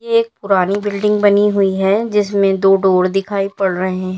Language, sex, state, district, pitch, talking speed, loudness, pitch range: Hindi, female, Uttar Pradesh, Lalitpur, 195 Hz, 185 wpm, -15 LUFS, 190-205 Hz